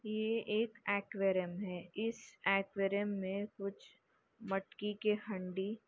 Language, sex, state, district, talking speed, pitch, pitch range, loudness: Hindi, female, Chhattisgarh, Bastar, 110 wpm, 200 Hz, 195-215 Hz, -38 LUFS